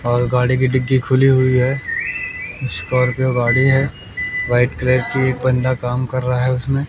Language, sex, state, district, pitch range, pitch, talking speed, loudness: Hindi, male, Bihar, West Champaran, 125-130 Hz, 130 Hz, 175 wpm, -17 LUFS